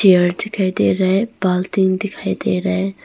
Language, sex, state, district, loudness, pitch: Hindi, female, Arunachal Pradesh, Longding, -18 LUFS, 185 Hz